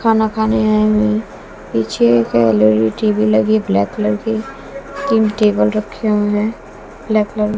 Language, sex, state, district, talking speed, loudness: Hindi, female, Bihar, West Champaran, 175 wpm, -15 LUFS